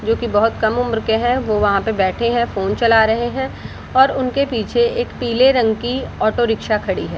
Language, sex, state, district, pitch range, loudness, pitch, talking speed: Hindi, female, Bihar, Darbhanga, 215-250 Hz, -17 LUFS, 230 Hz, 240 wpm